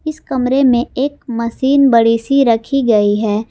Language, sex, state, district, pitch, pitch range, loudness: Hindi, female, Jharkhand, Garhwa, 250 Hz, 230-275 Hz, -14 LUFS